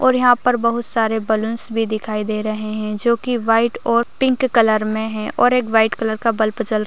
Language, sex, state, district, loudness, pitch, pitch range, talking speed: Hindi, female, Uttar Pradesh, Ghazipur, -18 LUFS, 225 Hz, 215-235 Hz, 225 wpm